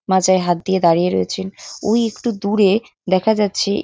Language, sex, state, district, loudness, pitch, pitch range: Bengali, female, West Bengal, North 24 Parganas, -17 LUFS, 190 Hz, 175-210 Hz